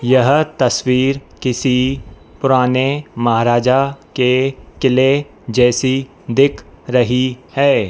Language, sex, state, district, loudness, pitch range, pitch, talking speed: Hindi, female, Madhya Pradesh, Dhar, -15 LUFS, 120-135 Hz, 130 Hz, 85 wpm